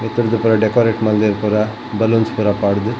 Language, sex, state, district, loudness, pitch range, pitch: Tulu, male, Karnataka, Dakshina Kannada, -16 LUFS, 105-115 Hz, 110 Hz